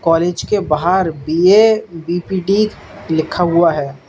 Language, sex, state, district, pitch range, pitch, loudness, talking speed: Hindi, male, Uttar Pradesh, Lalitpur, 160-195 Hz, 175 Hz, -15 LUFS, 115 wpm